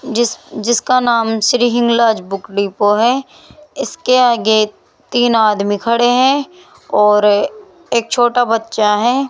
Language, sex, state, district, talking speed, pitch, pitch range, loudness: Hindi, female, Rajasthan, Jaipur, 120 wpm, 235 Hz, 215-255 Hz, -14 LUFS